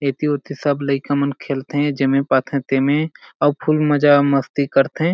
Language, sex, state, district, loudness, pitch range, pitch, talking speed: Chhattisgarhi, male, Chhattisgarh, Jashpur, -18 LUFS, 135-145 Hz, 140 Hz, 165 wpm